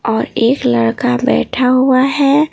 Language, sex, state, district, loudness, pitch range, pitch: Hindi, female, Bihar, Patna, -13 LUFS, 245-275 Hz, 255 Hz